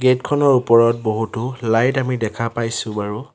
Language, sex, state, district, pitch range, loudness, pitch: Assamese, male, Assam, Sonitpur, 110-130 Hz, -18 LUFS, 115 Hz